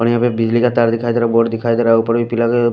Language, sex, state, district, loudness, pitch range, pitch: Hindi, male, Delhi, New Delhi, -15 LUFS, 115-120 Hz, 115 Hz